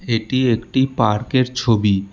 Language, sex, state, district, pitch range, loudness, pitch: Bengali, male, West Bengal, Alipurduar, 105-130 Hz, -18 LUFS, 120 Hz